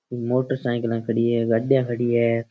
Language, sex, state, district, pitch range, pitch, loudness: Rajasthani, male, Rajasthan, Churu, 115-125 Hz, 120 Hz, -22 LUFS